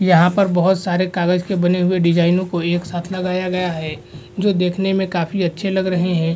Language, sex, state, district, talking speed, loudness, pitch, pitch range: Hindi, male, Bihar, Vaishali, 215 wpm, -18 LUFS, 180 Hz, 175-185 Hz